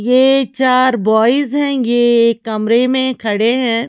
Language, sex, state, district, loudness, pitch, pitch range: Hindi, female, Haryana, Charkhi Dadri, -13 LUFS, 240 Hz, 230-260 Hz